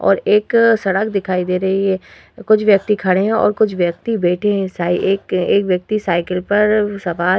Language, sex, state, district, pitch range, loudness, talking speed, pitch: Hindi, female, Uttar Pradesh, Hamirpur, 180-210 Hz, -16 LUFS, 185 wpm, 195 Hz